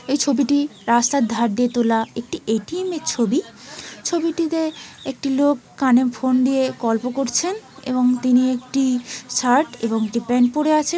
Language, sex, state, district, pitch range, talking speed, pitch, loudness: Bengali, male, West Bengal, Dakshin Dinajpur, 245-290 Hz, 160 wpm, 255 Hz, -20 LUFS